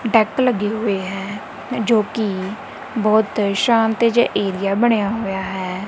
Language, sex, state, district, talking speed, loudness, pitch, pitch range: Punjabi, female, Punjab, Kapurthala, 135 wpm, -19 LUFS, 215 Hz, 195-230 Hz